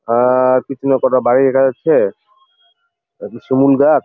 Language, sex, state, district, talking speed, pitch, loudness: Bengali, male, West Bengal, Jalpaiguri, 150 wpm, 135 Hz, -14 LUFS